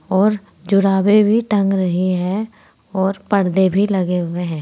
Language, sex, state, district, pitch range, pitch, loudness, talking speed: Hindi, female, Uttar Pradesh, Saharanpur, 185-205 Hz, 195 Hz, -17 LUFS, 155 wpm